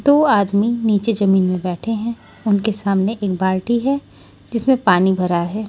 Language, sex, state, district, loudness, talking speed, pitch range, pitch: Hindi, female, Maharashtra, Washim, -18 LUFS, 170 wpm, 190-230 Hz, 205 Hz